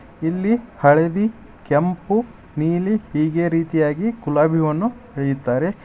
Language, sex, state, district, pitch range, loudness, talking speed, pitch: Kannada, male, Karnataka, Koppal, 150-215 Hz, -20 LUFS, 115 wpm, 165 Hz